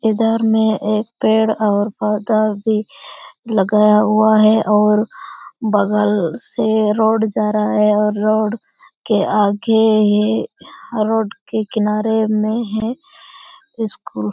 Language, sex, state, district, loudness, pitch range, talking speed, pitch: Hindi, female, Jharkhand, Sahebganj, -16 LUFS, 210-225 Hz, 120 wpm, 215 Hz